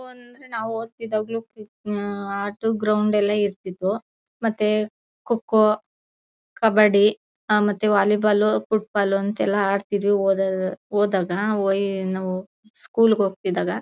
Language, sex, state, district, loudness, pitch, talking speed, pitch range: Kannada, female, Karnataka, Mysore, -22 LUFS, 210 Hz, 85 wpm, 200-220 Hz